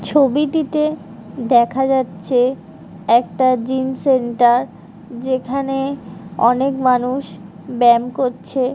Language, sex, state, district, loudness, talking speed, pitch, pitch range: Bengali, female, West Bengal, Kolkata, -17 LUFS, 80 wpm, 255 Hz, 235-270 Hz